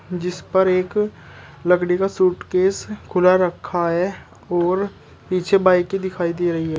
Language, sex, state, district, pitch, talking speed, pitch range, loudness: Hindi, male, Uttar Pradesh, Shamli, 180 Hz, 140 wpm, 175-190 Hz, -20 LUFS